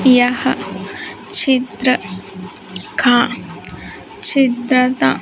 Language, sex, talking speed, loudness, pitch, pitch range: Hindi, female, 45 wpm, -16 LUFS, 250 Hz, 225-260 Hz